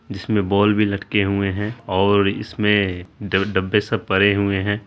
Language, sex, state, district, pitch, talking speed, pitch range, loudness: Hindi, female, Bihar, Araria, 100 Hz, 170 wpm, 100-105 Hz, -19 LUFS